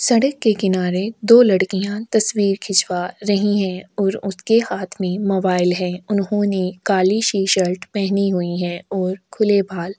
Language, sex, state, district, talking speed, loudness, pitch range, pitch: Hindi, female, Chhattisgarh, Korba, 150 wpm, -18 LUFS, 185-205 Hz, 195 Hz